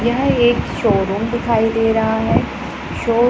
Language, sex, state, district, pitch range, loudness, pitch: Hindi, female, Punjab, Pathankot, 220-240 Hz, -17 LUFS, 225 Hz